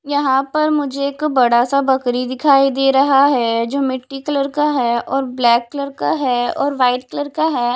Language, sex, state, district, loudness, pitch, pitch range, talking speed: Hindi, female, Himachal Pradesh, Shimla, -16 LUFS, 270 Hz, 250-285 Hz, 200 wpm